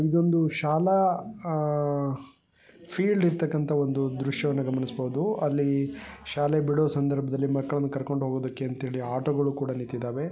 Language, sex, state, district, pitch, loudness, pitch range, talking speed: Kannada, male, Karnataka, Shimoga, 145 Hz, -27 LUFS, 135-155 Hz, 120 wpm